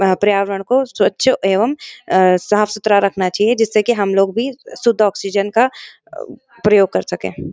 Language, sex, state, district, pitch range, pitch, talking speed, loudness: Hindi, female, Uttarakhand, Uttarkashi, 195-235 Hz, 210 Hz, 150 wpm, -16 LUFS